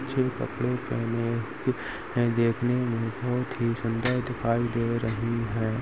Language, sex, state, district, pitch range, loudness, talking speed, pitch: Hindi, male, Uttar Pradesh, Jalaun, 115-125 Hz, -28 LUFS, 135 wpm, 115 Hz